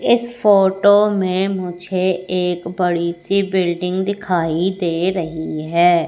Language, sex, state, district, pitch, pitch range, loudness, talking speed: Hindi, female, Madhya Pradesh, Katni, 185 Hz, 175-195 Hz, -18 LUFS, 120 wpm